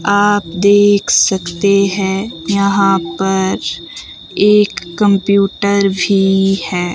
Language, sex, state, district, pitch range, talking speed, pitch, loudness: Hindi, female, Himachal Pradesh, Shimla, 190-200 Hz, 85 wpm, 195 Hz, -13 LUFS